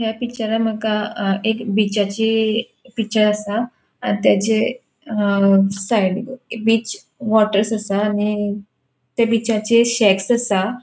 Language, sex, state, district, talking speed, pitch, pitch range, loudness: Konkani, female, Goa, North and South Goa, 110 wpm, 220 Hz, 205-230 Hz, -18 LUFS